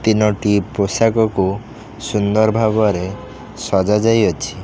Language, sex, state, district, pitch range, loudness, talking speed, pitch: Odia, male, Odisha, Khordha, 100-110 Hz, -17 LUFS, 80 wpm, 105 Hz